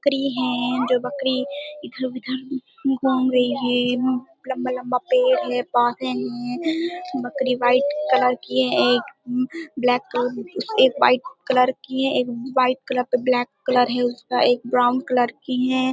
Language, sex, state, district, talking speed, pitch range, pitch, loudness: Hindi, female, Uttar Pradesh, Deoria, 145 wpm, 245-265 Hz, 255 Hz, -21 LUFS